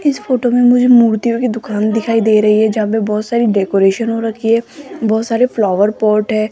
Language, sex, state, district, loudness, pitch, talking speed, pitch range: Hindi, female, Rajasthan, Jaipur, -13 LUFS, 225 Hz, 220 wpm, 215-235 Hz